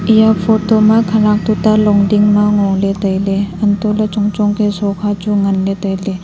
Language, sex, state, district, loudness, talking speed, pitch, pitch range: Wancho, female, Arunachal Pradesh, Longding, -13 LUFS, 165 wpm, 205 Hz, 195-215 Hz